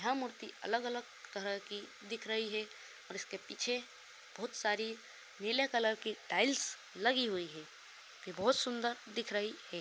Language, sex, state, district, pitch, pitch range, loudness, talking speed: Hindi, male, Bihar, Darbhanga, 225 Hz, 205-245 Hz, -37 LUFS, 160 wpm